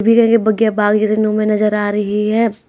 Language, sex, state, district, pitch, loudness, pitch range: Hindi, female, Uttar Pradesh, Hamirpur, 215 Hz, -14 LUFS, 210-225 Hz